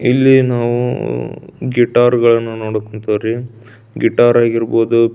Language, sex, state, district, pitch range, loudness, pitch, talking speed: Kannada, male, Karnataka, Belgaum, 115-120 Hz, -14 LUFS, 115 Hz, 80 wpm